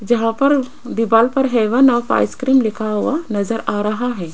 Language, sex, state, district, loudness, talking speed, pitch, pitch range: Hindi, female, Rajasthan, Jaipur, -17 LUFS, 180 wpm, 235 Hz, 220-265 Hz